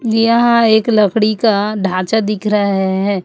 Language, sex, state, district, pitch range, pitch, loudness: Hindi, female, Chhattisgarh, Raipur, 200-225 Hz, 215 Hz, -13 LUFS